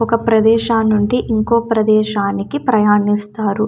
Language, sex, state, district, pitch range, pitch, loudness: Telugu, female, Andhra Pradesh, Anantapur, 210-230 Hz, 220 Hz, -15 LUFS